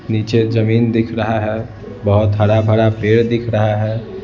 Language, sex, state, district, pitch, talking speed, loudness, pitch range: Hindi, male, Bihar, Patna, 110 Hz, 170 wpm, -15 LUFS, 110-115 Hz